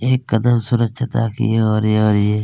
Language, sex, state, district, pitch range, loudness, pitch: Hindi, male, Chhattisgarh, Kabirdham, 110-120 Hz, -17 LUFS, 115 Hz